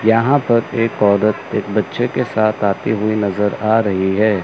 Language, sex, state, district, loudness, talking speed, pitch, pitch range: Hindi, male, Chandigarh, Chandigarh, -16 LUFS, 190 wpm, 110 Hz, 100-115 Hz